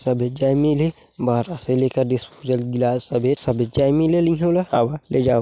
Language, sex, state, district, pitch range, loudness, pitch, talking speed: Chhattisgarhi, male, Chhattisgarh, Sarguja, 125-150 Hz, -20 LUFS, 130 Hz, 175 wpm